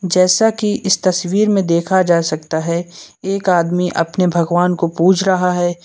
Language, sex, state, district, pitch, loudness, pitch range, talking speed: Hindi, male, Uttar Pradesh, Lucknow, 180 Hz, -15 LUFS, 170-190 Hz, 175 wpm